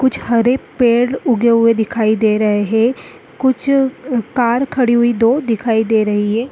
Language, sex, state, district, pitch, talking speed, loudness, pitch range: Hindi, female, Chhattisgarh, Korba, 235 Hz, 165 wpm, -15 LUFS, 220-255 Hz